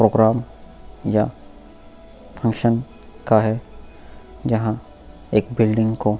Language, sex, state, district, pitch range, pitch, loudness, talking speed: Hindi, male, Goa, North and South Goa, 85-115 Hz, 110 Hz, -21 LUFS, 95 wpm